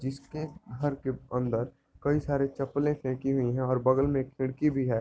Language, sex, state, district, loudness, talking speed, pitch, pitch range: Hindi, male, Bihar, Sitamarhi, -30 LUFS, 205 wpm, 135 Hz, 130-145 Hz